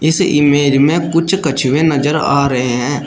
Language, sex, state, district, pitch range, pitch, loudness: Hindi, male, Uttar Pradesh, Shamli, 140-160 Hz, 145 Hz, -13 LUFS